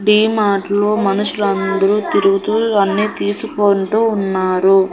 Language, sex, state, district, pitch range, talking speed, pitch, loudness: Telugu, female, Andhra Pradesh, Annamaya, 195-210 Hz, 85 wpm, 200 Hz, -15 LUFS